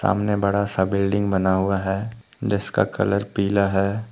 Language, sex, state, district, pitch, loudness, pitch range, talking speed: Hindi, male, Jharkhand, Deoghar, 100 Hz, -22 LUFS, 95-100 Hz, 160 wpm